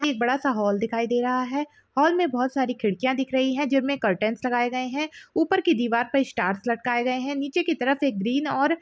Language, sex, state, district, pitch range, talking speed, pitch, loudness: Hindi, female, Chhattisgarh, Rajnandgaon, 240-285 Hz, 240 wpm, 260 Hz, -24 LUFS